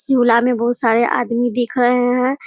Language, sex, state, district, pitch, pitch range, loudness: Hindi, female, Bihar, Muzaffarpur, 245 Hz, 235-250 Hz, -16 LUFS